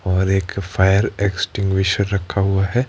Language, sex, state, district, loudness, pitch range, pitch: Hindi, male, Rajasthan, Jaipur, -19 LUFS, 95-100 Hz, 95 Hz